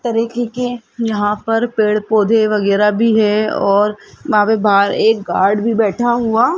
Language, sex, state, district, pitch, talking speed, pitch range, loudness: Hindi, female, Rajasthan, Jaipur, 220 Hz, 175 wpm, 210-230 Hz, -15 LUFS